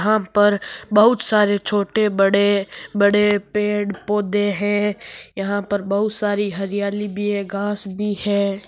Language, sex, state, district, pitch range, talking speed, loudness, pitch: Marwari, female, Rajasthan, Nagaur, 200-210 Hz, 130 wpm, -19 LUFS, 205 Hz